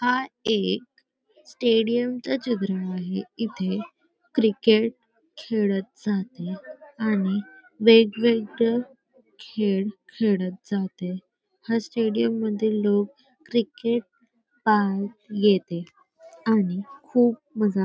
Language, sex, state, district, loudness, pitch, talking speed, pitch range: Marathi, female, Maharashtra, Sindhudurg, -24 LUFS, 225 Hz, 85 wpm, 205-245 Hz